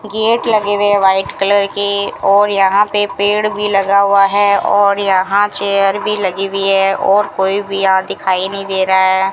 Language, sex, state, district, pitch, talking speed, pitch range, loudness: Hindi, female, Rajasthan, Bikaner, 200 Hz, 195 wpm, 195-205 Hz, -13 LUFS